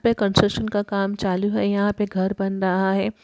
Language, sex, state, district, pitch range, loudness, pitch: Hindi, female, Uttar Pradesh, Varanasi, 190-205 Hz, -22 LUFS, 200 Hz